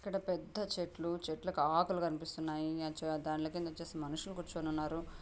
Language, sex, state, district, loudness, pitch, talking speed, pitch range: Telugu, female, Andhra Pradesh, Anantapur, -38 LUFS, 165 Hz, 140 wpm, 155-175 Hz